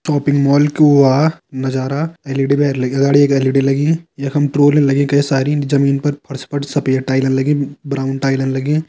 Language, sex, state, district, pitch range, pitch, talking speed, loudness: Hindi, male, Uttarakhand, Tehri Garhwal, 135-145 Hz, 140 Hz, 120 wpm, -15 LUFS